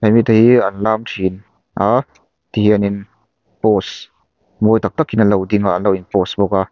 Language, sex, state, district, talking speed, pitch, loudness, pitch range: Mizo, male, Mizoram, Aizawl, 160 wpm, 105 Hz, -15 LUFS, 100-110 Hz